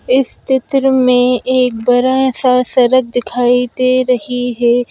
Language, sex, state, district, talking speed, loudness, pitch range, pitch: Hindi, female, Madhya Pradesh, Bhopal, 135 wpm, -13 LUFS, 245-255 Hz, 250 Hz